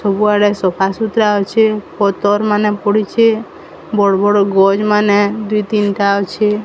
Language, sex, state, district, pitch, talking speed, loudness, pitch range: Odia, female, Odisha, Sambalpur, 205 Hz, 115 wpm, -14 LUFS, 200-210 Hz